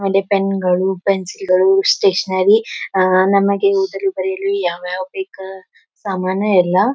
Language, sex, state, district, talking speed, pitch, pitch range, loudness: Kannada, female, Karnataka, Belgaum, 130 wpm, 190 Hz, 185-200 Hz, -16 LUFS